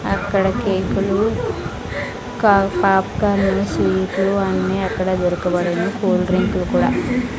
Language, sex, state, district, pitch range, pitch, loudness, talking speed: Telugu, female, Andhra Pradesh, Sri Satya Sai, 185-200 Hz, 195 Hz, -19 LUFS, 115 wpm